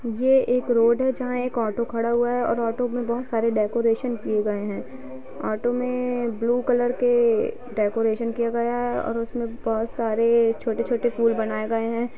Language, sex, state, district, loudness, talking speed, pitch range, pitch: Hindi, female, Bihar, East Champaran, -23 LUFS, 180 wpm, 225-245 Hz, 235 Hz